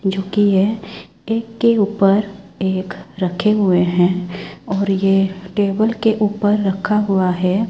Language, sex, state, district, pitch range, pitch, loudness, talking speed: Hindi, male, Chhattisgarh, Raipur, 190-210 Hz, 195 Hz, -17 LUFS, 130 wpm